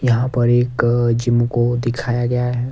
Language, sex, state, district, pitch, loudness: Hindi, male, Himachal Pradesh, Shimla, 120 Hz, -18 LUFS